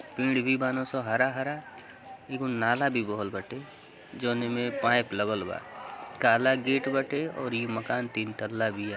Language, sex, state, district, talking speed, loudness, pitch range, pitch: Hindi, male, Uttar Pradesh, Gorakhpur, 165 wpm, -28 LUFS, 110-130 Hz, 120 Hz